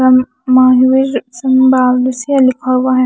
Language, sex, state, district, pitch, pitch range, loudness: Hindi, female, Haryana, Charkhi Dadri, 255 Hz, 255-260 Hz, -11 LUFS